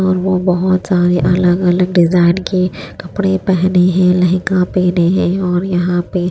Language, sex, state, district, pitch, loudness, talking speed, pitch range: Hindi, female, Chandigarh, Chandigarh, 180 Hz, -13 LUFS, 150 wpm, 180-185 Hz